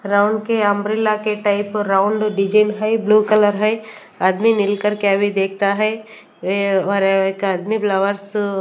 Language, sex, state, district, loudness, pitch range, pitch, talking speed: Hindi, female, Chandigarh, Chandigarh, -17 LUFS, 200-215 Hz, 205 Hz, 160 wpm